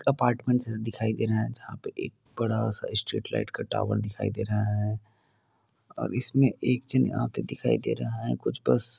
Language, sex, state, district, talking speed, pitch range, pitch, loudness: Hindi, male, Goa, North and South Goa, 185 wpm, 105-120 Hz, 110 Hz, -29 LUFS